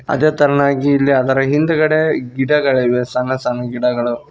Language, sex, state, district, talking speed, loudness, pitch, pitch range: Kannada, male, Karnataka, Koppal, 125 wpm, -15 LUFS, 135 Hz, 125-145 Hz